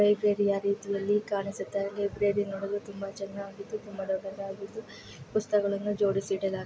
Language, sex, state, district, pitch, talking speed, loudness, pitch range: Kannada, female, Karnataka, Raichur, 200 Hz, 100 wpm, -31 LUFS, 195-205 Hz